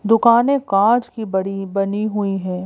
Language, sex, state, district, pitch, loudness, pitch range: Hindi, female, Madhya Pradesh, Bhopal, 205 Hz, -18 LUFS, 195-230 Hz